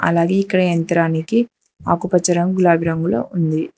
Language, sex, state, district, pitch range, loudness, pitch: Telugu, female, Telangana, Hyderabad, 165-185 Hz, -17 LUFS, 175 Hz